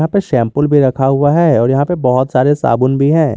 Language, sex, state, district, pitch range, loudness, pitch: Hindi, male, Jharkhand, Garhwa, 130-155 Hz, -12 LUFS, 140 Hz